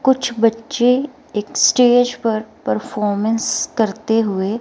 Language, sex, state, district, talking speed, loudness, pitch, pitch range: Hindi, female, Himachal Pradesh, Shimla, 115 wpm, -17 LUFS, 230 Hz, 215-255 Hz